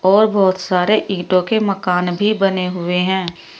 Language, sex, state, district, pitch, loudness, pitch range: Hindi, female, Uttar Pradesh, Shamli, 190 Hz, -16 LUFS, 180-200 Hz